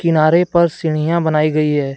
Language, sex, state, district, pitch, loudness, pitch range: Hindi, male, Jharkhand, Deoghar, 155 Hz, -15 LUFS, 155-170 Hz